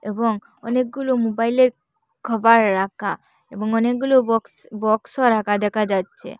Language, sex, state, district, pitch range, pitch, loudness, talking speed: Bengali, female, Assam, Hailakandi, 210-245 Hz, 225 Hz, -20 LUFS, 115 wpm